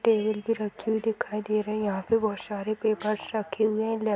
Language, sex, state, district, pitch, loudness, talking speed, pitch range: Hindi, female, Bihar, East Champaran, 215 Hz, -28 LUFS, 260 wpm, 210-220 Hz